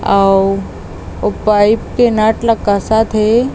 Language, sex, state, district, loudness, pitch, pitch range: Chhattisgarhi, female, Chhattisgarh, Bilaspur, -13 LUFS, 215 Hz, 200-225 Hz